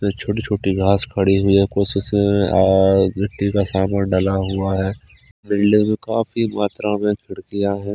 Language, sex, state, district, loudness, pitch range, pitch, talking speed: Hindi, male, Chandigarh, Chandigarh, -18 LUFS, 95-105 Hz, 100 Hz, 150 wpm